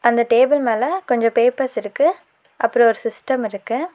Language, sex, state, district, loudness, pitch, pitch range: Tamil, female, Tamil Nadu, Nilgiris, -18 LUFS, 240 Hz, 230-275 Hz